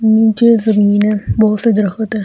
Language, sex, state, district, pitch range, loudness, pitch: Hindi, female, Delhi, New Delhi, 210-220 Hz, -12 LUFS, 215 Hz